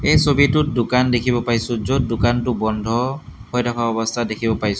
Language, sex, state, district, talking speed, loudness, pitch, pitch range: Assamese, male, Assam, Hailakandi, 160 wpm, -19 LUFS, 120 Hz, 115-125 Hz